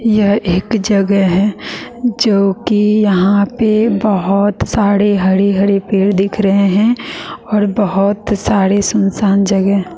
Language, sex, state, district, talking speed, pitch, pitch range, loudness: Hindi, female, Bihar, West Champaran, 120 wpm, 200 Hz, 195-210 Hz, -13 LUFS